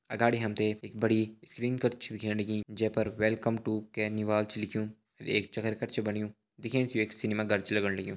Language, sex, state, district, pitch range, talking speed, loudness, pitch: Hindi, male, Uttarakhand, Uttarkashi, 105-110 Hz, 215 wpm, -32 LUFS, 110 Hz